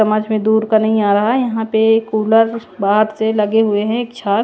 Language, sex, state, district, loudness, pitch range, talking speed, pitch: Hindi, female, Chandigarh, Chandigarh, -15 LUFS, 215-225 Hz, 230 wpm, 220 Hz